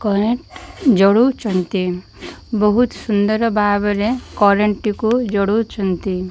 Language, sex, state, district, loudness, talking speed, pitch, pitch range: Odia, female, Odisha, Malkangiri, -17 LUFS, 75 wpm, 210 Hz, 200-230 Hz